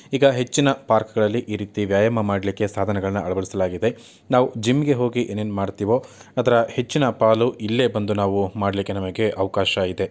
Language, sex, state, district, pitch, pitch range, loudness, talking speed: Kannada, male, Karnataka, Chamarajanagar, 110 Hz, 100-120 Hz, -21 LUFS, 160 wpm